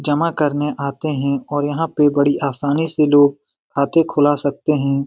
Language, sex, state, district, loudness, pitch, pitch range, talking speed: Hindi, male, Bihar, Lakhisarai, -18 LUFS, 145 Hz, 140-150 Hz, 165 wpm